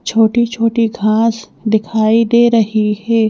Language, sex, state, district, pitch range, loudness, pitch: Hindi, female, Madhya Pradesh, Bhopal, 220-230 Hz, -14 LUFS, 225 Hz